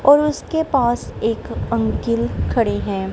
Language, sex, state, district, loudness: Hindi, female, Punjab, Kapurthala, -20 LUFS